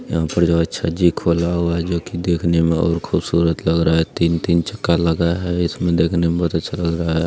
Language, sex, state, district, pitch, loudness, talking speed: Hindi, male, Bihar, Jamui, 85 Hz, -18 LUFS, 240 wpm